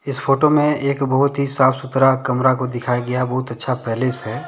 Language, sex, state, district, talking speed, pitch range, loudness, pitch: Hindi, male, Jharkhand, Deoghar, 215 wpm, 125-140 Hz, -18 LUFS, 130 Hz